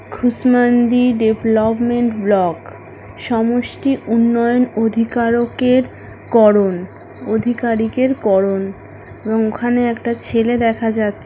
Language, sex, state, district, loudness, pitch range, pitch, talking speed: Bengali, female, West Bengal, North 24 Parganas, -16 LUFS, 220-240 Hz, 230 Hz, 85 wpm